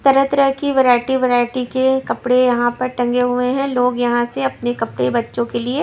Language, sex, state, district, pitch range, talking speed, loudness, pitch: Hindi, female, Maharashtra, Washim, 240-265 Hz, 195 wpm, -17 LUFS, 250 Hz